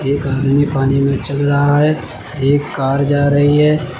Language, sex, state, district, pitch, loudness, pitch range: Hindi, male, Uttar Pradesh, Lucknow, 140 Hz, -14 LUFS, 135-145 Hz